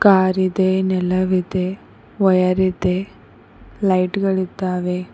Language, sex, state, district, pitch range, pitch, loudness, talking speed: Kannada, female, Karnataka, Koppal, 180-190 Hz, 185 Hz, -19 LUFS, 70 wpm